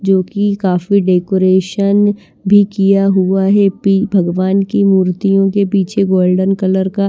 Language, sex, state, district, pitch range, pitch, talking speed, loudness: Hindi, female, Maharashtra, Washim, 190-200 Hz, 195 Hz, 135 wpm, -13 LUFS